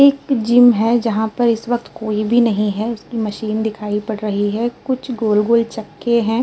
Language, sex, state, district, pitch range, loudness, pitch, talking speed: Hindi, female, Uttar Pradesh, Jalaun, 215-240 Hz, -17 LUFS, 225 Hz, 195 wpm